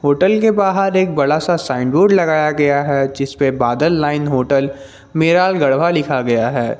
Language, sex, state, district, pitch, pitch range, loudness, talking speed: Hindi, male, Jharkhand, Garhwa, 145 Hz, 135-175 Hz, -15 LUFS, 175 wpm